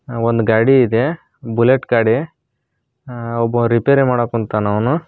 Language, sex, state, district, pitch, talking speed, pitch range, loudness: Kannada, male, Karnataka, Koppal, 120 Hz, 130 wpm, 115-130 Hz, -16 LUFS